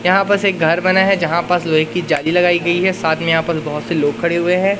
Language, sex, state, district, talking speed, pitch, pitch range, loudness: Hindi, male, Madhya Pradesh, Katni, 300 wpm, 170 Hz, 160-185 Hz, -15 LUFS